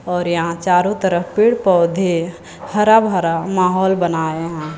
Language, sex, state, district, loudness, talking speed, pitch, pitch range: Hindi, female, Uttar Pradesh, Lucknow, -16 LUFS, 140 wpm, 180 Hz, 170-190 Hz